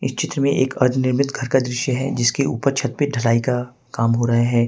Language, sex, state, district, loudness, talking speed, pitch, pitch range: Hindi, male, Jharkhand, Ranchi, -20 LUFS, 245 wpm, 130 Hz, 120-135 Hz